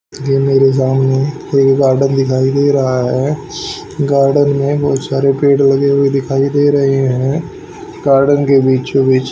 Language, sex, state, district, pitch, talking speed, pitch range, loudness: Hindi, male, Haryana, Jhajjar, 135 Hz, 160 wpm, 135-140 Hz, -13 LUFS